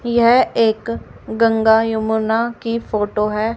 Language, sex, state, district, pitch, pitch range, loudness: Hindi, female, Haryana, Rohtak, 225 Hz, 220-230 Hz, -17 LUFS